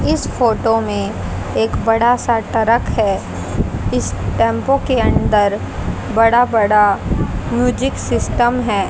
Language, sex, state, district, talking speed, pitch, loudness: Hindi, female, Haryana, Jhajjar, 115 wpm, 200 Hz, -16 LUFS